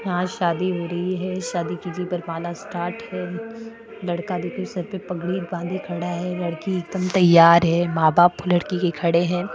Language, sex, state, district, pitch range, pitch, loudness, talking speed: Hindi, female, Goa, North and South Goa, 170-185 Hz, 175 Hz, -22 LUFS, 175 wpm